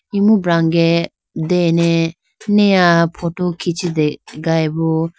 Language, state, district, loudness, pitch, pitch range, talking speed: Idu Mishmi, Arunachal Pradesh, Lower Dibang Valley, -16 LUFS, 170 Hz, 165-180 Hz, 80 wpm